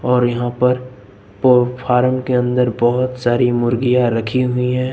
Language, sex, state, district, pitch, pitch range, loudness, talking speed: Hindi, male, Uttar Pradesh, Lucknow, 125 Hz, 120-125 Hz, -16 LUFS, 170 wpm